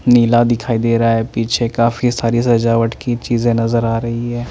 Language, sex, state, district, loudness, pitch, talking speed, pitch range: Hindi, male, Chandigarh, Chandigarh, -15 LUFS, 115 Hz, 200 wpm, 115-120 Hz